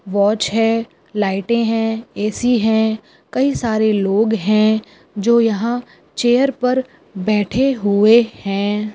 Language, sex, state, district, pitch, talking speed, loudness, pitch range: Hindi, female, Andhra Pradesh, Anantapur, 220 Hz, 115 wpm, -17 LUFS, 210-235 Hz